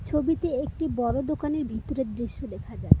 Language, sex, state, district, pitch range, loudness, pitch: Bengali, female, West Bengal, Cooch Behar, 240-305 Hz, -28 LUFS, 295 Hz